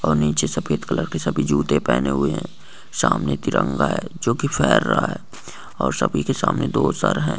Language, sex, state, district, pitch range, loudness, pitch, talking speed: Hindi, male, Goa, North and South Goa, 70-75 Hz, -21 LUFS, 75 Hz, 185 wpm